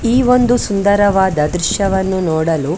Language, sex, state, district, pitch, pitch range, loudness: Kannada, female, Karnataka, Dakshina Kannada, 190 Hz, 165-205 Hz, -14 LUFS